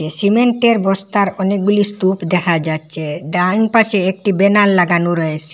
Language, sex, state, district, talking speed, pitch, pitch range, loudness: Bengali, female, Assam, Hailakandi, 120 wpm, 190 Hz, 170-205 Hz, -14 LUFS